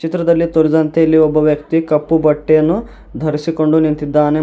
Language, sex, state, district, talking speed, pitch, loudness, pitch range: Kannada, male, Karnataka, Bidar, 120 wpm, 155 Hz, -14 LUFS, 150-165 Hz